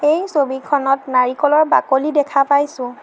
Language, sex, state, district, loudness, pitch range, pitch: Assamese, female, Assam, Sonitpur, -16 LUFS, 265-295 Hz, 280 Hz